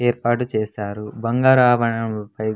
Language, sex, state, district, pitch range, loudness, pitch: Telugu, male, Andhra Pradesh, Anantapur, 110-120 Hz, -20 LUFS, 115 Hz